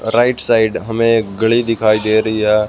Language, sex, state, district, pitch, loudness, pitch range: Hindi, male, Haryana, Rohtak, 110 Hz, -14 LUFS, 110-115 Hz